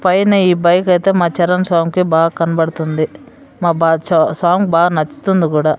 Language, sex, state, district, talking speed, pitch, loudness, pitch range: Telugu, female, Andhra Pradesh, Sri Satya Sai, 155 wpm, 175 Hz, -14 LUFS, 165-185 Hz